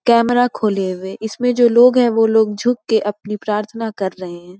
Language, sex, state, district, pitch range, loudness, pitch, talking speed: Hindi, female, Bihar, Muzaffarpur, 200-240 Hz, -16 LUFS, 220 Hz, 195 wpm